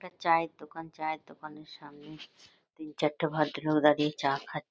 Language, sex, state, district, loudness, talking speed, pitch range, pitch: Bengali, female, West Bengal, North 24 Parganas, -30 LUFS, 155 wpm, 150-160 Hz, 155 Hz